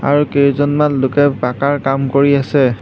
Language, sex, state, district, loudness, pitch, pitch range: Assamese, male, Assam, Hailakandi, -14 LUFS, 140 Hz, 135-145 Hz